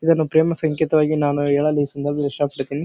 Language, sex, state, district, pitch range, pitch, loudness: Kannada, male, Karnataka, Bijapur, 145-155 Hz, 145 Hz, -20 LUFS